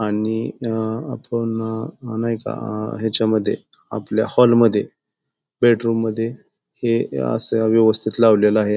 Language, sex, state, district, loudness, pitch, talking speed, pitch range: Marathi, male, Maharashtra, Pune, -19 LUFS, 110 Hz, 115 wpm, 110-115 Hz